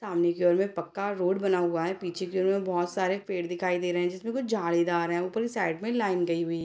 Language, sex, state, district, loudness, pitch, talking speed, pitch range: Hindi, female, Bihar, Purnia, -28 LUFS, 180 Hz, 300 wpm, 175-195 Hz